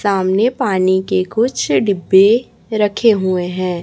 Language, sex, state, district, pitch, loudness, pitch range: Hindi, female, Chhattisgarh, Raipur, 195 Hz, -15 LUFS, 185-220 Hz